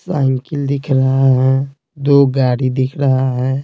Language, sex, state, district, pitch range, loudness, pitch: Hindi, male, Bihar, Patna, 130-140 Hz, -15 LUFS, 135 Hz